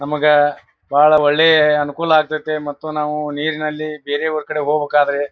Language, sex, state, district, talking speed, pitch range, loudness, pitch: Kannada, male, Karnataka, Bijapur, 135 wpm, 145-155 Hz, -16 LUFS, 150 Hz